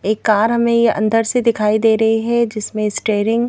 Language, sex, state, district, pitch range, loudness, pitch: Hindi, female, Madhya Pradesh, Bhopal, 215-235 Hz, -16 LUFS, 225 Hz